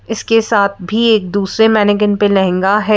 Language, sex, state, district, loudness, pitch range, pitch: Hindi, female, Madhya Pradesh, Bhopal, -13 LUFS, 200-220 Hz, 210 Hz